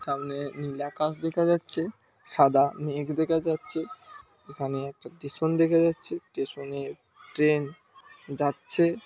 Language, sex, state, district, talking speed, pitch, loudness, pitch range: Bengali, male, West Bengal, Dakshin Dinajpur, 125 wpm, 155 Hz, -27 LUFS, 140-170 Hz